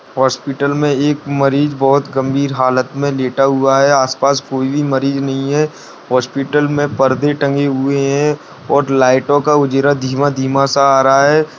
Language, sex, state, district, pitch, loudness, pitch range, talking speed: Hindi, male, Bihar, Darbhanga, 140 Hz, -14 LUFS, 135-145 Hz, 165 wpm